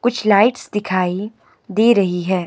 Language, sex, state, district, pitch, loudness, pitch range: Hindi, male, Himachal Pradesh, Shimla, 205 Hz, -17 LUFS, 185-225 Hz